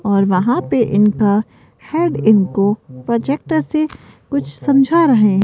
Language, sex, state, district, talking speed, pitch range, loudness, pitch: Hindi, female, Rajasthan, Jaipur, 130 wpm, 195-275 Hz, -16 LUFS, 210 Hz